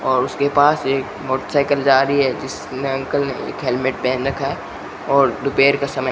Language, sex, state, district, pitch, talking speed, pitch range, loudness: Hindi, male, Rajasthan, Bikaner, 135 Hz, 205 wpm, 135-140 Hz, -18 LUFS